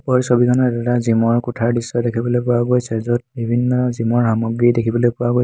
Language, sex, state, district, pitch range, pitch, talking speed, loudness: Assamese, male, Assam, Hailakandi, 115-125 Hz, 120 Hz, 200 wpm, -17 LUFS